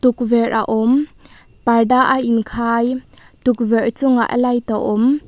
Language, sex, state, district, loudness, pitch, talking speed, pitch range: Mizo, female, Mizoram, Aizawl, -16 LUFS, 235 Hz, 135 wpm, 230-250 Hz